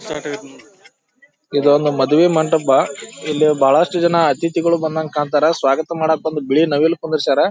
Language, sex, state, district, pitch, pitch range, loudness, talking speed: Kannada, male, Karnataka, Bijapur, 155 Hz, 145-165 Hz, -16 LUFS, 160 wpm